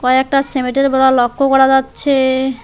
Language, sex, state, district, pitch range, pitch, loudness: Bengali, female, West Bengal, Alipurduar, 260-275 Hz, 265 Hz, -13 LUFS